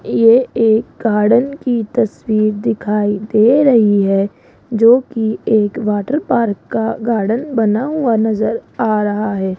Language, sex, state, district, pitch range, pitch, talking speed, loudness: Hindi, female, Rajasthan, Jaipur, 210-235 Hz, 220 Hz, 130 wpm, -15 LUFS